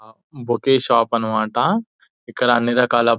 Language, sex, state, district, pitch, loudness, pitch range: Telugu, male, Telangana, Nalgonda, 120 Hz, -18 LUFS, 115-125 Hz